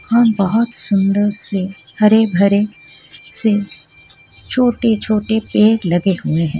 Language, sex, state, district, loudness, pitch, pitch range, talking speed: Hindi, female, Jharkhand, Ranchi, -16 LUFS, 205 Hz, 190-220 Hz, 120 wpm